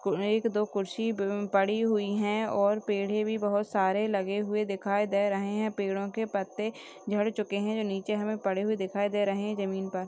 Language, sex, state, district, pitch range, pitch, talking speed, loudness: Hindi, female, Chhattisgarh, Sukma, 200-215 Hz, 205 Hz, 195 wpm, -29 LUFS